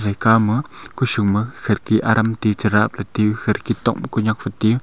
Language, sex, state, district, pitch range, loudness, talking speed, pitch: Wancho, male, Arunachal Pradesh, Longding, 105-115 Hz, -18 LUFS, 150 wpm, 110 Hz